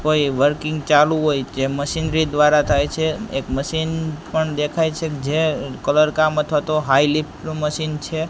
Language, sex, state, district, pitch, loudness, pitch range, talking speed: Gujarati, male, Gujarat, Gandhinagar, 155 Hz, -19 LUFS, 145-160 Hz, 165 wpm